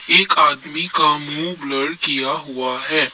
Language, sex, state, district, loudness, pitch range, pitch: Hindi, male, Assam, Kamrup Metropolitan, -17 LUFS, 135-160 Hz, 145 Hz